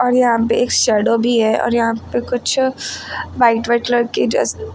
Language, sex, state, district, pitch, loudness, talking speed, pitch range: Hindi, female, Uttar Pradesh, Lucknow, 235 Hz, -16 LUFS, 200 wpm, 230-245 Hz